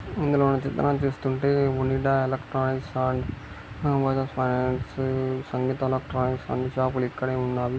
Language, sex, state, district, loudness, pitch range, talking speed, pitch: Telugu, male, Karnataka, Gulbarga, -26 LUFS, 130-135 Hz, 115 wpm, 130 Hz